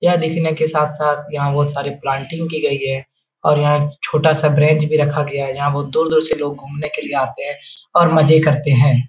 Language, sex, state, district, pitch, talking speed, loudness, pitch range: Hindi, male, Bihar, Jahanabad, 150 Hz, 225 wpm, -17 LUFS, 140-155 Hz